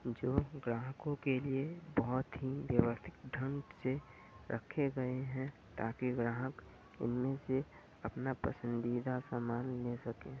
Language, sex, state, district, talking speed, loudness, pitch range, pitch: Hindi, female, Bihar, Purnia, 120 wpm, -39 LUFS, 120-135 Hz, 130 Hz